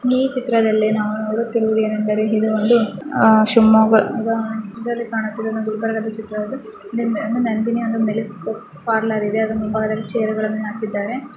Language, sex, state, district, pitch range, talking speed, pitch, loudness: Kannada, female, Karnataka, Gulbarga, 215-230 Hz, 125 wpm, 220 Hz, -19 LUFS